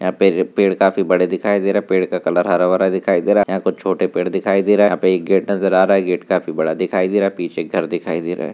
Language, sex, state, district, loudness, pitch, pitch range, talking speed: Hindi, male, Rajasthan, Nagaur, -17 LUFS, 95 Hz, 90-100 Hz, 330 wpm